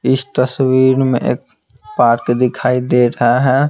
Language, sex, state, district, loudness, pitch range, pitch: Hindi, male, Bihar, Patna, -14 LUFS, 125-130 Hz, 125 Hz